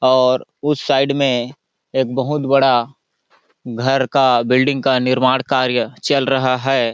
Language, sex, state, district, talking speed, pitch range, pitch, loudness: Hindi, male, Chhattisgarh, Balrampur, 140 wpm, 130-135 Hz, 130 Hz, -16 LUFS